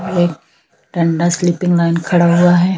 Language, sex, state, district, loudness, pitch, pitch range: Hindi, female, Chhattisgarh, Sukma, -14 LUFS, 175 Hz, 170-175 Hz